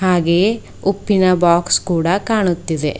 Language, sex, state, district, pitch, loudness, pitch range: Kannada, female, Karnataka, Bidar, 180 Hz, -16 LUFS, 170-195 Hz